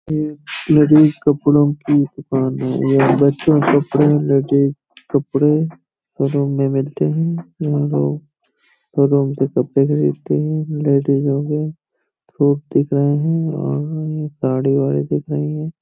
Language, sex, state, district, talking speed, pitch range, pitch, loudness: Hindi, male, Uttar Pradesh, Hamirpur, 125 wpm, 140-150 Hz, 145 Hz, -17 LUFS